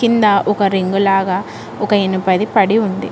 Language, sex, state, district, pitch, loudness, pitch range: Telugu, female, Telangana, Mahabubabad, 200 Hz, -15 LUFS, 190-210 Hz